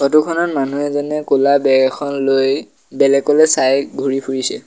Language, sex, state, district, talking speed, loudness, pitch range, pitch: Assamese, male, Assam, Sonitpur, 140 wpm, -15 LUFS, 135-145 Hz, 140 Hz